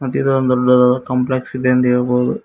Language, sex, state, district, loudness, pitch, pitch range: Kannada, male, Karnataka, Koppal, -15 LUFS, 125 Hz, 125-130 Hz